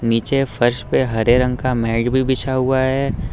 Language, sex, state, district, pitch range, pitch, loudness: Hindi, male, Uttar Pradesh, Lucknow, 115-130 Hz, 125 Hz, -18 LUFS